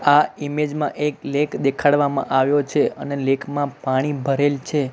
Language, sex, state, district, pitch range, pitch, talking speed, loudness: Gujarati, male, Gujarat, Gandhinagar, 135-145 Hz, 145 Hz, 170 wpm, -20 LUFS